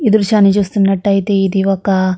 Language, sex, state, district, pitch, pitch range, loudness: Telugu, female, Andhra Pradesh, Guntur, 195 Hz, 195-205 Hz, -13 LUFS